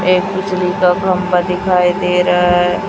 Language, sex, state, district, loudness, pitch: Hindi, male, Chhattisgarh, Raipur, -14 LUFS, 180 Hz